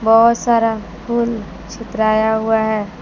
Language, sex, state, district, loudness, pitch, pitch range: Hindi, female, Jharkhand, Palamu, -16 LUFS, 220 Hz, 220-230 Hz